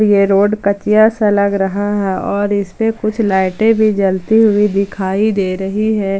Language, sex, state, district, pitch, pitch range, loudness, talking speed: Hindi, female, Jharkhand, Palamu, 205 Hz, 195-215 Hz, -14 LUFS, 175 wpm